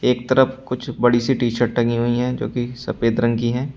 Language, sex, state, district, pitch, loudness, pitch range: Hindi, male, Uttar Pradesh, Shamli, 120 Hz, -20 LUFS, 120-125 Hz